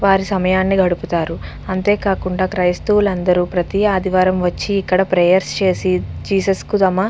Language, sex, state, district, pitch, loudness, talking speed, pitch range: Telugu, female, Andhra Pradesh, Visakhapatnam, 185 Hz, -17 LUFS, 125 wpm, 180-195 Hz